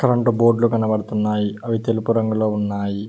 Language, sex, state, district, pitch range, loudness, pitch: Telugu, male, Telangana, Mahabubabad, 105-115 Hz, -20 LUFS, 110 Hz